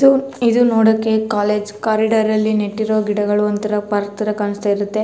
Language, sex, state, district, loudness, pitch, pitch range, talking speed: Kannada, female, Karnataka, Chamarajanagar, -17 LUFS, 215 Hz, 205-220 Hz, 155 wpm